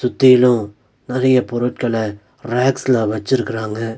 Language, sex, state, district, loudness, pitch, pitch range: Tamil, male, Tamil Nadu, Nilgiris, -17 LUFS, 120 Hz, 110-130 Hz